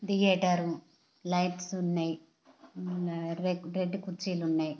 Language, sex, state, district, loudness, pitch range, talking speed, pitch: Telugu, female, Andhra Pradesh, Guntur, -32 LUFS, 165-185 Hz, 90 wpm, 180 Hz